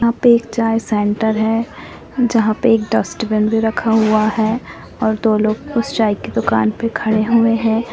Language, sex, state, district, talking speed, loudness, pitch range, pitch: Hindi, female, Jharkhand, Jamtara, 175 wpm, -16 LUFS, 215-230 Hz, 225 Hz